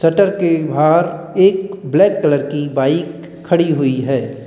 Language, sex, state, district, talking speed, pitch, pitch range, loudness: Hindi, male, Uttar Pradesh, Lalitpur, 150 wpm, 165 Hz, 145-170 Hz, -15 LUFS